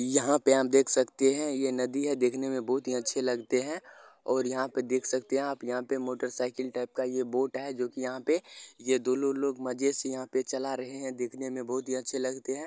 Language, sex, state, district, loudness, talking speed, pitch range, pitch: Hindi, male, Bihar, Sitamarhi, -30 LUFS, 245 wpm, 125-135 Hz, 130 Hz